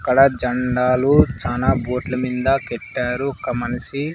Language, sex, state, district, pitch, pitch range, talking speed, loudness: Telugu, male, Andhra Pradesh, Sri Satya Sai, 125 Hz, 125-135 Hz, 115 wpm, -19 LUFS